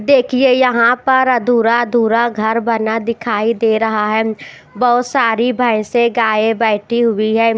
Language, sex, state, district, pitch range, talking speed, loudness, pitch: Hindi, female, Haryana, Jhajjar, 220-245 Hz, 135 wpm, -14 LUFS, 230 Hz